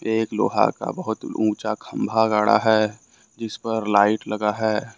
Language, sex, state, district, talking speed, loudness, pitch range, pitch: Hindi, male, Jharkhand, Ranchi, 155 wpm, -22 LUFS, 105-110 Hz, 110 Hz